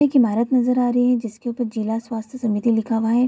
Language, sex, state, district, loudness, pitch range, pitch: Hindi, female, Bihar, Kishanganj, -21 LUFS, 225-250 Hz, 235 Hz